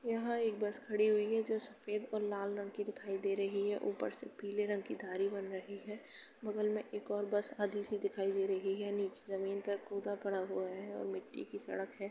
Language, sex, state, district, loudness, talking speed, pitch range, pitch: Hindi, female, Uttar Pradesh, Jalaun, -39 LUFS, 235 wpm, 195-210 Hz, 205 Hz